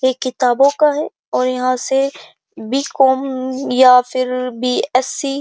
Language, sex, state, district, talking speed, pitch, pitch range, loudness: Hindi, female, Uttar Pradesh, Jyotiba Phule Nagar, 135 wpm, 260 Hz, 255-270 Hz, -16 LUFS